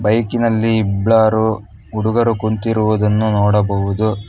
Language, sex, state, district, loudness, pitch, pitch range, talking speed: Kannada, male, Karnataka, Bangalore, -16 LUFS, 110 Hz, 105-110 Hz, 85 wpm